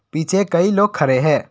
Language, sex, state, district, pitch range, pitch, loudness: Hindi, male, Assam, Kamrup Metropolitan, 145-195 Hz, 160 Hz, -17 LUFS